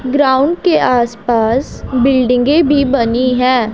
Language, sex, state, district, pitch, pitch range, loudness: Hindi, female, Punjab, Pathankot, 255 Hz, 245-275 Hz, -13 LUFS